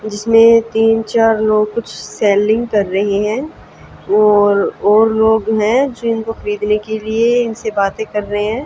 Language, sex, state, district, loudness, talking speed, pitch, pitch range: Hindi, female, Haryana, Jhajjar, -14 LUFS, 160 wpm, 220 Hz, 210-225 Hz